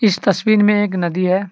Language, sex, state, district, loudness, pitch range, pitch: Hindi, male, Jharkhand, Deoghar, -16 LUFS, 185-210 Hz, 195 Hz